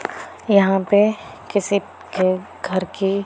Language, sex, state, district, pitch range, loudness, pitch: Hindi, female, Punjab, Pathankot, 190-210 Hz, -19 LUFS, 200 Hz